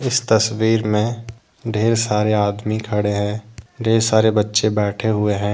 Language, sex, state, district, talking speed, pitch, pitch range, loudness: Hindi, male, Jharkhand, Deoghar, 150 wpm, 110 Hz, 105-115 Hz, -18 LUFS